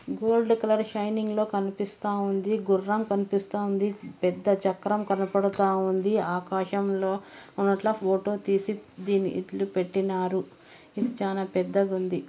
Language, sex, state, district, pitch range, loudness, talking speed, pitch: Telugu, female, Andhra Pradesh, Anantapur, 190-210 Hz, -27 LUFS, 110 wpm, 200 Hz